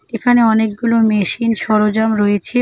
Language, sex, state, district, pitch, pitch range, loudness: Bengali, female, West Bengal, Cooch Behar, 220 Hz, 210-230 Hz, -15 LUFS